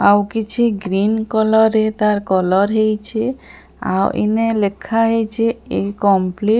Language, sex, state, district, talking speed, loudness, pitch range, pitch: Odia, female, Odisha, Sambalpur, 110 wpm, -17 LUFS, 200-225 Hz, 215 Hz